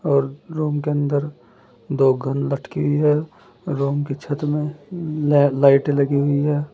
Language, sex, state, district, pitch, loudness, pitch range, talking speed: Hindi, male, Uttar Pradesh, Saharanpur, 145 Hz, -20 LUFS, 140-150 Hz, 150 wpm